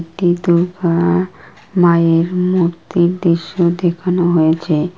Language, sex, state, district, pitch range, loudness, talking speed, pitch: Bengali, female, West Bengal, Kolkata, 170-180 Hz, -15 LUFS, 95 wpm, 175 Hz